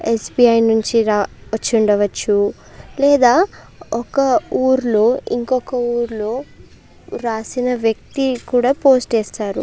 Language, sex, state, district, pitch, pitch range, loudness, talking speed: Telugu, female, Andhra Pradesh, Chittoor, 235 Hz, 220-260 Hz, -17 LUFS, 100 wpm